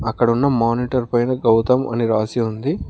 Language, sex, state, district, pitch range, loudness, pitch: Telugu, male, Telangana, Komaram Bheem, 115-125 Hz, -18 LUFS, 120 Hz